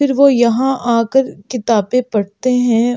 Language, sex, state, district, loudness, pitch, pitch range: Hindi, female, Delhi, New Delhi, -15 LUFS, 245 Hz, 230-255 Hz